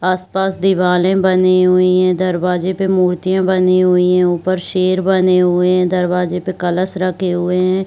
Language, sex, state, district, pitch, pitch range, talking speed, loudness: Chhattisgarhi, female, Chhattisgarh, Rajnandgaon, 185 Hz, 180-185 Hz, 170 wpm, -14 LUFS